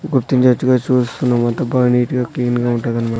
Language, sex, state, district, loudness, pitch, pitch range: Telugu, male, Andhra Pradesh, Sri Satya Sai, -16 LUFS, 125 Hz, 120-130 Hz